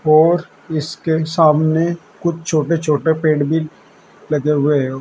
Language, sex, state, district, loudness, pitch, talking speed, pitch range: Hindi, male, Uttar Pradesh, Saharanpur, -17 LUFS, 155 Hz, 130 wpm, 150-165 Hz